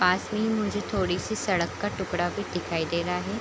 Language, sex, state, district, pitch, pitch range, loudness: Hindi, female, Bihar, Kishanganj, 190 Hz, 180-215 Hz, -28 LUFS